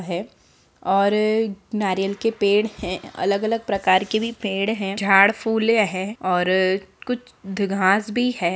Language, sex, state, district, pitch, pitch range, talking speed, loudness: Hindi, female, Bihar, Muzaffarpur, 200 Hz, 190-220 Hz, 140 wpm, -21 LUFS